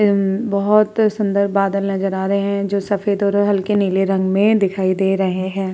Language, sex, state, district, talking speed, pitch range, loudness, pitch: Hindi, female, Uttar Pradesh, Muzaffarnagar, 200 wpm, 195-205 Hz, -17 LUFS, 200 Hz